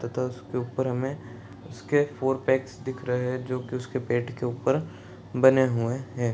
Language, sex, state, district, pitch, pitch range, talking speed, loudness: Hindi, male, Chhattisgarh, Sarguja, 125 Hz, 120-130 Hz, 180 wpm, -27 LUFS